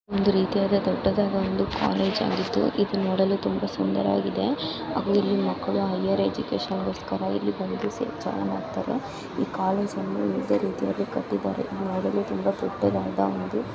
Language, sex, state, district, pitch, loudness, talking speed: Kannada, female, Karnataka, Dakshina Kannada, 100 Hz, -26 LUFS, 125 wpm